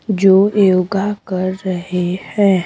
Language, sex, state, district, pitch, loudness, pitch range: Hindi, female, Bihar, Patna, 190 Hz, -16 LUFS, 185-200 Hz